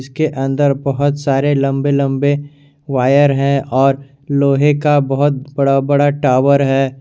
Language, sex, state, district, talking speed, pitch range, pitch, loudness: Hindi, male, Jharkhand, Garhwa, 135 wpm, 135-145 Hz, 140 Hz, -14 LUFS